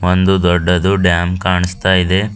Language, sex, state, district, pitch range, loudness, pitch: Kannada, female, Karnataka, Bidar, 90-95 Hz, -14 LUFS, 90 Hz